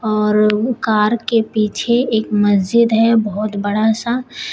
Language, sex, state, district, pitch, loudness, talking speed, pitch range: Hindi, female, Uttar Pradesh, Shamli, 220 Hz, -16 LUFS, 135 wpm, 210-235 Hz